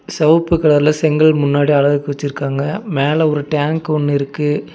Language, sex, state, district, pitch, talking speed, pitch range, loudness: Tamil, male, Tamil Nadu, Nilgiris, 150 Hz, 140 wpm, 145-155 Hz, -15 LUFS